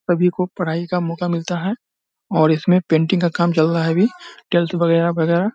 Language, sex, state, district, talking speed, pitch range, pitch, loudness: Hindi, male, Bihar, Samastipur, 205 wpm, 165-180 Hz, 175 Hz, -18 LUFS